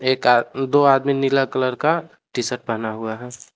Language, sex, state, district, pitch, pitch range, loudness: Hindi, male, Jharkhand, Palamu, 130 Hz, 125-135 Hz, -20 LUFS